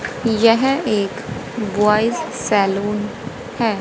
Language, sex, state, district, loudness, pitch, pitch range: Hindi, female, Haryana, Rohtak, -18 LUFS, 215 Hz, 205-230 Hz